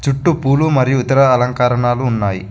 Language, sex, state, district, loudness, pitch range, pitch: Telugu, male, Telangana, Mahabubabad, -14 LUFS, 120-135 Hz, 130 Hz